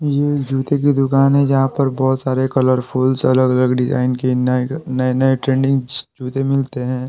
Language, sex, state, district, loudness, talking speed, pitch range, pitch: Hindi, male, Bihar, Patna, -17 LUFS, 160 wpm, 130-135 Hz, 130 Hz